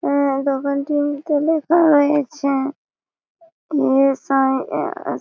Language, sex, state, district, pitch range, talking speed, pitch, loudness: Bengali, female, West Bengal, Malda, 275-295 Hz, 125 wpm, 285 Hz, -18 LUFS